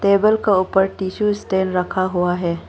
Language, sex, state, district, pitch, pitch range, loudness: Hindi, female, Arunachal Pradesh, Lower Dibang Valley, 190 Hz, 180-200 Hz, -18 LUFS